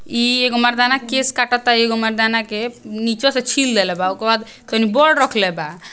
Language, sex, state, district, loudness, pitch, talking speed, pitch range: Bhojpuri, female, Bihar, Gopalganj, -16 LUFS, 240 Hz, 235 wpm, 225-255 Hz